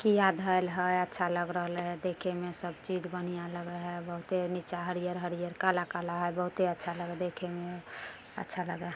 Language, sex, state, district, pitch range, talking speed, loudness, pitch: Maithili, female, Bihar, Samastipur, 175-180 Hz, 215 wpm, -34 LUFS, 175 Hz